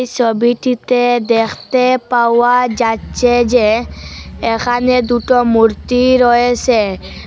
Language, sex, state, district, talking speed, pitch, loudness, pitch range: Bengali, female, Assam, Hailakandi, 75 wpm, 245 Hz, -13 LUFS, 235-250 Hz